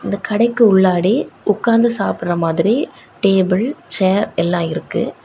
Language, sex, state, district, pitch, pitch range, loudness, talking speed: Tamil, female, Tamil Nadu, Kanyakumari, 195 Hz, 175-225 Hz, -16 LUFS, 115 wpm